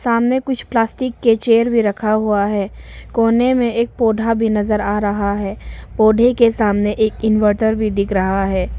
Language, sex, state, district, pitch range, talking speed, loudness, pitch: Hindi, female, Arunachal Pradesh, Papum Pare, 205-230 Hz, 185 wpm, -16 LUFS, 220 Hz